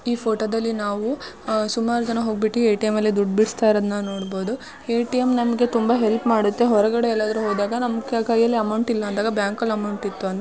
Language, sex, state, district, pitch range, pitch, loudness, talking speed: Kannada, female, Karnataka, Shimoga, 210-235 Hz, 220 Hz, -21 LUFS, 190 wpm